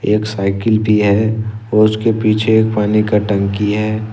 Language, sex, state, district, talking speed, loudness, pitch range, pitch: Hindi, male, Jharkhand, Ranchi, 145 wpm, -15 LUFS, 105-110 Hz, 110 Hz